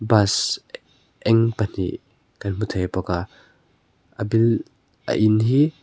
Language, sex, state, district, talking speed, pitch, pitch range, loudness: Mizo, male, Mizoram, Aizawl, 135 wpm, 110 Hz, 100-115 Hz, -22 LUFS